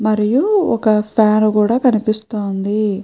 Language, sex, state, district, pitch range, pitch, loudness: Telugu, female, Andhra Pradesh, Chittoor, 210-225 Hz, 215 Hz, -15 LUFS